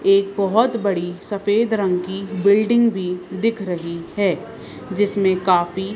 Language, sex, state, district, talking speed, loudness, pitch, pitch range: Hindi, female, Madhya Pradesh, Bhopal, 130 wpm, -20 LUFS, 195 Hz, 180-205 Hz